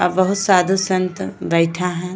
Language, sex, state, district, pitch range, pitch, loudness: Bhojpuri, female, Uttar Pradesh, Gorakhpur, 175-185 Hz, 185 Hz, -18 LUFS